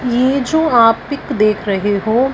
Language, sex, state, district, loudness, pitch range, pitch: Hindi, female, Punjab, Fazilka, -14 LUFS, 215-275 Hz, 240 Hz